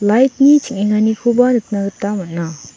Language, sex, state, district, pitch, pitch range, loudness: Garo, female, Meghalaya, West Garo Hills, 210 Hz, 200-245 Hz, -15 LUFS